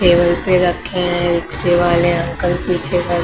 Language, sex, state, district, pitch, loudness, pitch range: Hindi, female, Maharashtra, Mumbai Suburban, 175 Hz, -16 LUFS, 175-180 Hz